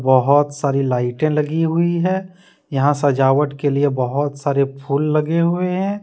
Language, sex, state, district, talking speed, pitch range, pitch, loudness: Hindi, male, Jharkhand, Deoghar, 160 wpm, 140-165 Hz, 145 Hz, -18 LUFS